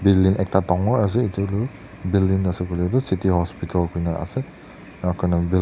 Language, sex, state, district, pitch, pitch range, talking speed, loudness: Nagamese, male, Nagaland, Dimapur, 95 Hz, 90-100 Hz, 130 wpm, -22 LUFS